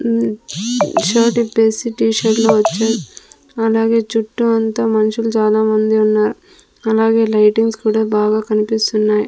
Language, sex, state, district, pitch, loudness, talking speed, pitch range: Telugu, female, Andhra Pradesh, Sri Satya Sai, 220 Hz, -15 LUFS, 125 wpm, 215-225 Hz